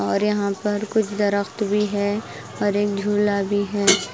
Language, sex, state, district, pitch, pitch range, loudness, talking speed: Hindi, female, Himachal Pradesh, Shimla, 205 Hz, 200-210 Hz, -22 LUFS, 175 wpm